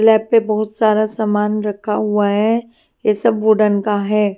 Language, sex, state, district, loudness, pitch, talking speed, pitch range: Hindi, female, Himachal Pradesh, Shimla, -16 LUFS, 215 Hz, 180 wpm, 210-220 Hz